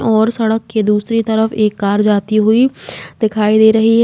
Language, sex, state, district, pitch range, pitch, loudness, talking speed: Hindi, female, Uttar Pradesh, Jalaun, 215-225 Hz, 220 Hz, -13 LUFS, 195 wpm